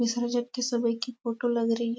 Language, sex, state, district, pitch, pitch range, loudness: Hindi, male, Chhattisgarh, Bastar, 240 Hz, 230-240 Hz, -29 LUFS